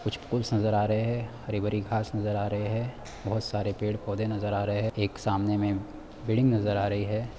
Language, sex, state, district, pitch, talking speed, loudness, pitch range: Hindi, male, Chhattisgarh, Rajnandgaon, 105 Hz, 225 wpm, -29 LUFS, 105-110 Hz